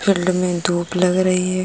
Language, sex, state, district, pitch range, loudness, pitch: Hindi, female, Uttar Pradesh, Jalaun, 180-185 Hz, -18 LUFS, 180 Hz